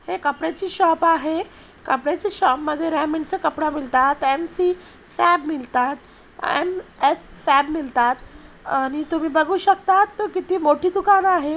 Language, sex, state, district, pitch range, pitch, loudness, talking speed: Marathi, male, Maharashtra, Chandrapur, 295-370 Hz, 320 Hz, -20 LUFS, 135 wpm